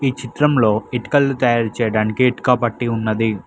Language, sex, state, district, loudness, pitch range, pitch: Telugu, male, Telangana, Mahabubabad, -18 LUFS, 110-125 Hz, 120 Hz